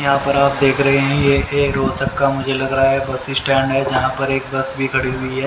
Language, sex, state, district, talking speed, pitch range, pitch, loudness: Hindi, male, Haryana, Rohtak, 275 wpm, 135-140 Hz, 135 Hz, -17 LUFS